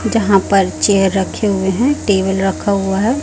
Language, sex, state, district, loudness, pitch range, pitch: Hindi, female, Chhattisgarh, Raipur, -15 LUFS, 195-220 Hz, 195 Hz